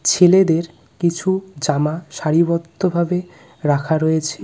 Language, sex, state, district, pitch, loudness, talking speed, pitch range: Bengali, male, West Bengal, Cooch Behar, 170 Hz, -18 LUFS, 95 wpm, 155-180 Hz